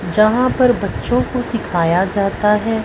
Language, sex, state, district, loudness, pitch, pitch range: Hindi, female, Punjab, Fazilka, -16 LUFS, 215 Hz, 200-245 Hz